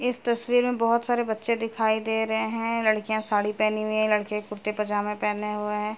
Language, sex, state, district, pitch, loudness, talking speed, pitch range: Hindi, female, Uttar Pradesh, Jalaun, 220 Hz, -26 LUFS, 210 wpm, 210-230 Hz